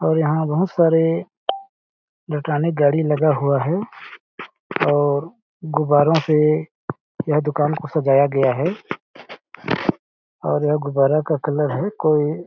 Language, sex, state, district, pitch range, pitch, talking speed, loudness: Hindi, male, Chhattisgarh, Balrampur, 145-165 Hz, 155 Hz, 115 wpm, -19 LUFS